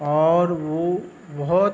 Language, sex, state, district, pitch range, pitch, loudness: Hindi, male, Uttar Pradesh, Budaun, 155-175 Hz, 170 Hz, -21 LUFS